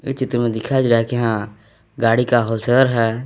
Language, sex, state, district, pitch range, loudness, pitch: Hindi, male, Jharkhand, Palamu, 115-125 Hz, -18 LUFS, 120 Hz